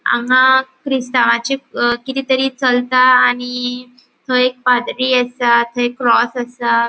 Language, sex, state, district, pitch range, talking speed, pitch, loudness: Konkani, female, Goa, North and South Goa, 245-260 Hz, 120 wpm, 250 Hz, -15 LUFS